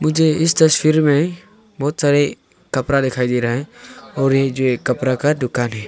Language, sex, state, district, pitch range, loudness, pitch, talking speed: Hindi, male, Arunachal Pradesh, Longding, 125-155 Hz, -17 LUFS, 140 Hz, 195 wpm